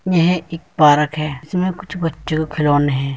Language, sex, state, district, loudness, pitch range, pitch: Hindi, male, Uttar Pradesh, Muzaffarnagar, -18 LUFS, 145-170 Hz, 155 Hz